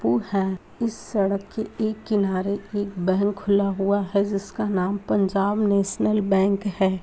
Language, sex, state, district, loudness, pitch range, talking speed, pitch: Hindi, female, Uttar Pradesh, Muzaffarnagar, -23 LUFS, 195-205 Hz, 135 wpm, 200 Hz